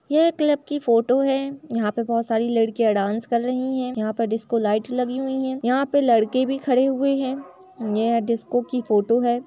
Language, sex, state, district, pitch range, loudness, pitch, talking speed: Hindi, female, Uttar Pradesh, Etah, 230-270 Hz, -22 LUFS, 245 Hz, 215 wpm